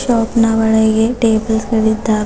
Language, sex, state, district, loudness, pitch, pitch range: Kannada, female, Karnataka, Bidar, -14 LUFS, 225 Hz, 220-230 Hz